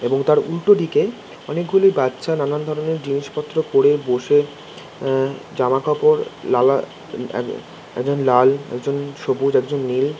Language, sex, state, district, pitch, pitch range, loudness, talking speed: Bengali, male, West Bengal, Kolkata, 140 Hz, 135-155 Hz, -19 LUFS, 130 wpm